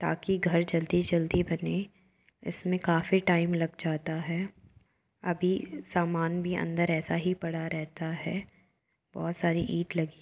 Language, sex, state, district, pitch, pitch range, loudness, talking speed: Hindi, female, Uttar Pradesh, Jyotiba Phule Nagar, 170 Hz, 165-180 Hz, -30 LUFS, 145 wpm